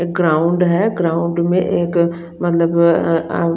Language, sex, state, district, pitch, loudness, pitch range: Hindi, female, Chandigarh, Chandigarh, 170 Hz, -16 LUFS, 170-175 Hz